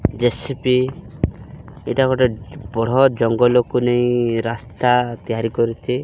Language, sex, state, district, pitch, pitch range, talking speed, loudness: Odia, male, Odisha, Malkangiri, 120 Hz, 115-130 Hz, 90 wpm, -19 LUFS